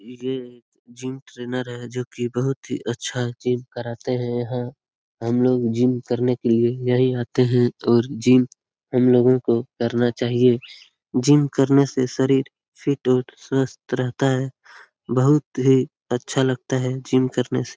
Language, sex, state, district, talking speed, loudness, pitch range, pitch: Hindi, male, Bihar, Lakhisarai, 165 wpm, -21 LUFS, 120-130 Hz, 125 Hz